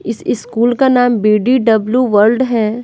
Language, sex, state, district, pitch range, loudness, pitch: Hindi, female, Bihar, West Champaran, 220-250 Hz, -13 LUFS, 235 Hz